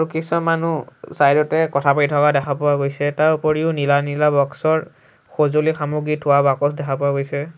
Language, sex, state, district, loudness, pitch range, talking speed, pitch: Assamese, male, Assam, Sonitpur, -18 LUFS, 140-155 Hz, 165 wpm, 145 Hz